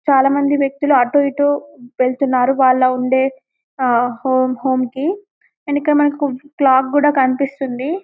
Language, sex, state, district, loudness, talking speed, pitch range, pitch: Telugu, female, Telangana, Karimnagar, -16 LUFS, 120 wpm, 255-285 Hz, 270 Hz